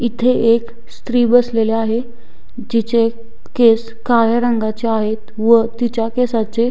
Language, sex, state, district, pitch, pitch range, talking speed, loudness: Marathi, female, Maharashtra, Sindhudurg, 230 Hz, 225-240 Hz, 115 wpm, -16 LUFS